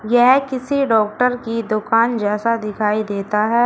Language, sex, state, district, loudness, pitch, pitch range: Hindi, female, Uttar Pradesh, Shamli, -18 LUFS, 230 Hz, 210-245 Hz